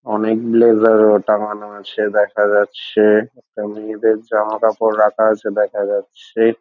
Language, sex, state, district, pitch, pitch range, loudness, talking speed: Bengali, male, West Bengal, Dakshin Dinajpur, 105 Hz, 105-110 Hz, -16 LUFS, 165 wpm